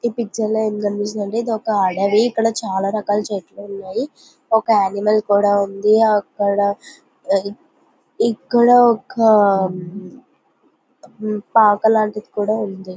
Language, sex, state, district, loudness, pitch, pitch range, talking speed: Telugu, female, Andhra Pradesh, Visakhapatnam, -17 LUFS, 210 Hz, 200-225 Hz, 100 wpm